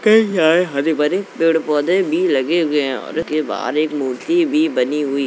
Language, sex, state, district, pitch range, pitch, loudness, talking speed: Hindi, male, Uttar Pradesh, Jalaun, 150-195 Hz, 160 Hz, -17 LUFS, 205 wpm